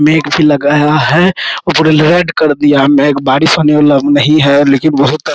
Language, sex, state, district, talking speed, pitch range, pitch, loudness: Hindi, male, Bihar, Araria, 225 wpm, 145-155 Hz, 150 Hz, -9 LUFS